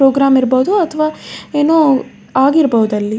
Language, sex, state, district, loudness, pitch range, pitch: Kannada, female, Karnataka, Dakshina Kannada, -13 LUFS, 255-310 Hz, 275 Hz